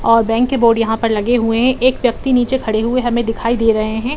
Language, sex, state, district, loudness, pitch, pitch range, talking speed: Hindi, female, Bihar, Saran, -15 LUFS, 235 Hz, 225-250 Hz, 270 wpm